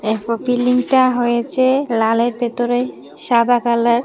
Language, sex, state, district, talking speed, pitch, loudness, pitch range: Bengali, female, Tripura, West Tripura, 105 wpm, 240 Hz, -16 LUFS, 235-250 Hz